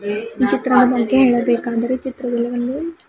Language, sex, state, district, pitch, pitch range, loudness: Kannada, female, Karnataka, Bidar, 245 Hz, 235-260 Hz, -18 LUFS